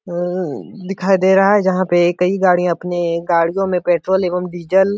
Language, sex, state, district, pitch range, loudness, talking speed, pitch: Hindi, male, Uttar Pradesh, Etah, 175-190 Hz, -16 LUFS, 195 wpm, 180 Hz